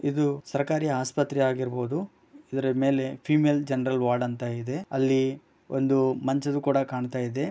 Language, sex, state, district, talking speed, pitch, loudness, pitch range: Kannada, male, Karnataka, Bellary, 130 wpm, 135 Hz, -27 LUFS, 130-145 Hz